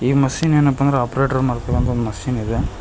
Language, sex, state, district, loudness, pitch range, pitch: Kannada, male, Karnataka, Koppal, -18 LUFS, 120-135 Hz, 125 Hz